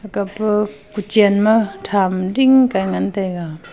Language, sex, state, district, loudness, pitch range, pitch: Wancho, female, Arunachal Pradesh, Longding, -17 LUFS, 185-215 Hz, 205 Hz